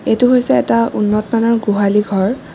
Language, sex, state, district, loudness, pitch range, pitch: Assamese, female, Assam, Kamrup Metropolitan, -14 LUFS, 205-230 Hz, 220 Hz